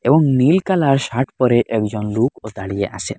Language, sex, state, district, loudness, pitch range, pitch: Bengali, male, Assam, Hailakandi, -17 LUFS, 105-135 Hz, 120 Hz